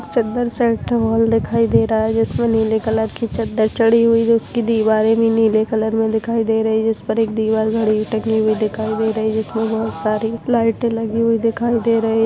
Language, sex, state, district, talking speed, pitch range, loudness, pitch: Hindi, female, Bihar, Muzaffarpur, 225 wpm, 220-230 Hz, -17 LUFS, 225 Hz